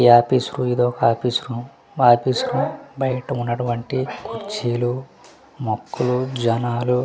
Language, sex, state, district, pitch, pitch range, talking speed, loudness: Telugu, male, Andhra Pradesh, Manyam, 125 Hz, 120-130 Hz, 125 wpm, -21 LUFS